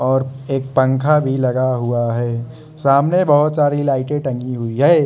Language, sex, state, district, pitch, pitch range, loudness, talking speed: Hindi, male, Arunachal Pradesh, Lower Dibang Valley, 135 Hz, 125-145 Hz, -17 LUFS, 165 wpm